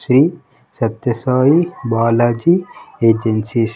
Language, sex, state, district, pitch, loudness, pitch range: Telugu, male, Andhra Pradesh, Sri Satya Sai, 120 Hz, -16 LUFS, 115-140 Hz